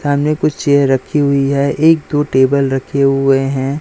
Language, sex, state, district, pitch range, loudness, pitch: Hindi, male, Chhattisgarh, Raipur, 135-145 Hz, -13 LUFS, 140 Hz